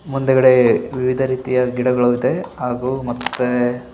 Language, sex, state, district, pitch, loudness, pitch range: Kannada, male, Karnataka, Bellary, 125 Hz, -17 LUFS, 125-130 Hz